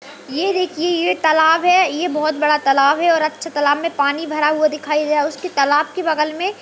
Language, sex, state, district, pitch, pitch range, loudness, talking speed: Hindi, female, Bihar, Jamui, 310 Hz, 295-335 Hz, -17 LUFS, 245 wpm